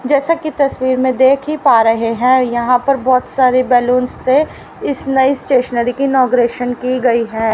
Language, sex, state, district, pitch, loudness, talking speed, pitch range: Hindi, female, Haryana, Rohtak, 255 Hz, -14 LUFS, 185 wpm, 245-270 Hz